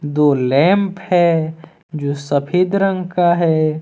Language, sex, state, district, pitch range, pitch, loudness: Hindi, male, Jharkhand, Deoghar, 150-180 Hz, 165 Hz, -16 LUFS